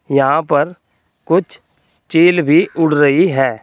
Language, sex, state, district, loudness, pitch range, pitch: Hindi, male, Uttar Pradesh, Saharanpur, -14 LUFS, 140-170 Hz, 145 Hz